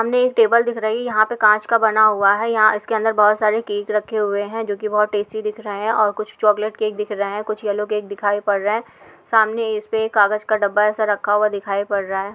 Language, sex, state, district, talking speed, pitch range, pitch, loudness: Hindi, female, Uttar Pradesh, Hamirpur, 265 wpm, 205-220 Hz, 215 Hz, -19 LUFS